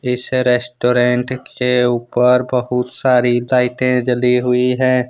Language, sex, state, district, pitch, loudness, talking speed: Hindi, male, Jharkhand, Ranchi, 125 Hz, -15 LUFS, 115 wpm